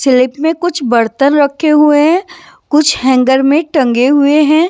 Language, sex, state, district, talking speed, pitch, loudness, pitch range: Hindi, female, Maharashtra, Washim, 165 wpm, 290 Hz, -11 LUFS, 265-315 Hz